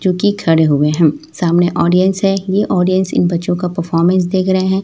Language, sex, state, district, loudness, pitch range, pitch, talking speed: Hindi, female, Chhattisgarh, Raipur, -14 LUFS, 170-190 Hz, 180 Hz, 210 wpm